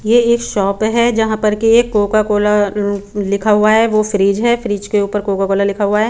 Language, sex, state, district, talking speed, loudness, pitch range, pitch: Hindi, female, Chandigarh, Chandigarh, 225 wpm, -14 LUFS, 205-220 Hz, 210 Hz